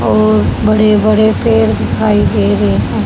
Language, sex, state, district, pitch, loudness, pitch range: Hindi, female, Haryana, Rohtak, 110 Hz, -11 LUFS, 105-165 Hz